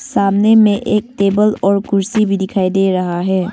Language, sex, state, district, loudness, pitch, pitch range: Hindi, female, Arunachal Pradesh, Longding, -14 LUFS, 200 Hz, 190-210 Hz